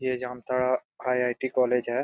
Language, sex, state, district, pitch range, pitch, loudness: Hindi, male, Jharkhand, Jamtara, 125-130 Hz, 125 Hz, -27 LUFS